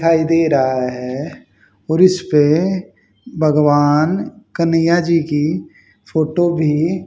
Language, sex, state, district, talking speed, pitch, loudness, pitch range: Hindi, male, Haryana, Jhajjar, 100 wpm, 160 Hz, -16 LUFS, 150-170 Hz